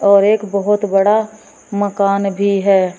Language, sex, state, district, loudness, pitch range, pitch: Hindi, female, Uttar Pradesh, Shamli, -15 LUFS, 200-210 Hz, 200 Hz